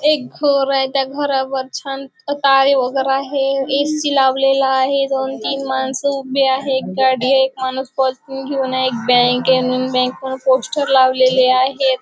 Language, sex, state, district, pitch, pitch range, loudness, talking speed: Marathi, female, Maharashtra, Chandrapur, 265 Hz, 260-275 Hz, -16 LUFS, 155 wpm